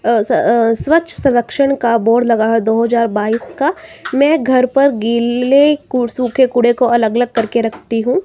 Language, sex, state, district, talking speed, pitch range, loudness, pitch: Hindi, female, Himachal Pradesh, Shimla, 190 wpm, 230-270 Hz, -14 LUFS, 240 Hz